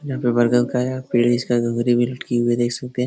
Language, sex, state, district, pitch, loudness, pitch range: Hindi, male, Bihar, Jahanabad, 120 Hz, -20 LUFS, 120-125 Hz